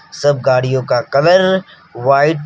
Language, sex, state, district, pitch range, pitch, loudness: Hindi, male, Jharkhand, Palamu, 130-175 Hz, 140 Hz, -14 LUFS